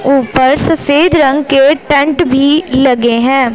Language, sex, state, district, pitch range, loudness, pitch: Hindi, male, Punjab, Pathankot, 265-295 Hz, -10 LUFS, 275 Hz